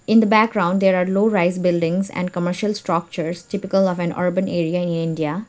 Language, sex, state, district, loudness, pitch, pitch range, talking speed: English, female, Sikkim, Gangtok, -20 LUFS, 180 Hz, 175-195 Hz, 195 wpm